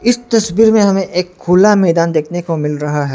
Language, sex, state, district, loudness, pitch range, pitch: Hindi, male, Arunachal Pradesh, Lower Dibang Valley, -13 LUFS, 165-210 Hz, 180 Hz